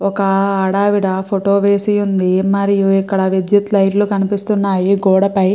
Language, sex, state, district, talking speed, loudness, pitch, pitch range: Telugu, female, Andhra Pradesh, Srikakulam, 130 wpm, -14 LUFS, 195 Hz, 195-200 Hz